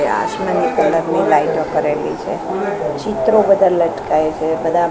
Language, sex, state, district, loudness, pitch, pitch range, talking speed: Gujarati, female, Gujarat, Gandhinagar, -16 LUFS, 170 Hz, 160-195 Hz, 160 wpm